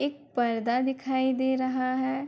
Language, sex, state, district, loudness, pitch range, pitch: Hindi, female, Bihar, Bhagalpur, -27 LUFS, 255-265 Hz, 260 Hz